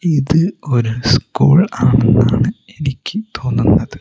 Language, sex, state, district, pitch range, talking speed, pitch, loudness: Malayalam, male, Kerala, Kozhikode, 125-170 Hz, 90 wpm, 145 Hz, -15 LUFS